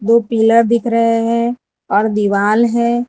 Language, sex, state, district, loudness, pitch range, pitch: Hindi, female, Gujarat, Valsad, -14 LUFS, 220-235 Hz, 230 Hz